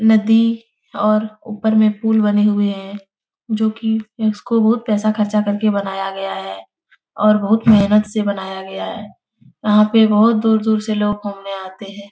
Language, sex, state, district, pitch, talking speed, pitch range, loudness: Hindi, female, Bihar, Jahanabad, 210 Hz, 175 wpm, 200-220 Hz, -17 LUFS